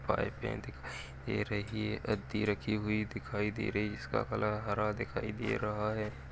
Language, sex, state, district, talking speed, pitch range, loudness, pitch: Hindi, male, Uttar Pradesh, Deoria, 160 wpm, 105-110 Hz, -36 LUFS, 105 Hz